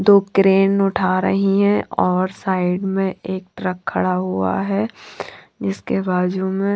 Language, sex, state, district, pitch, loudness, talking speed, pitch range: Hindi, female, Haryana, Charkhi Dadri, 190 Hz, -19 LUFS, 140 wpm, 180-195 Hz